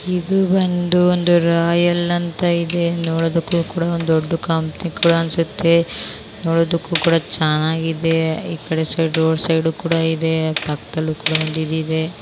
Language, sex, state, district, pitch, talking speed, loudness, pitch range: Kannada, female, Karnataka, Mysore, 165 Hz, 105 wpm, -18 LUFS, 160-170 Hz